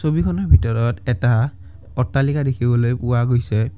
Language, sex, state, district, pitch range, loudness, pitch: Assamese, male, Assam, Kamrup Metropolitan, 115-135 Hz, -19 LUFS, 120 Hz